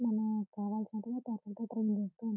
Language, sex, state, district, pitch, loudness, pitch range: Telugu, female, Telangana, Karimnagar, 215 Hz, -37 LUFS, 210-225 Hz